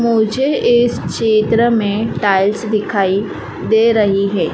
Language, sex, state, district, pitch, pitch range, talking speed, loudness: Hindi, female, Madhya Pradesh, Dhar, 215 Hz, 200-230 Hz, 120 wpm, -15 LUFS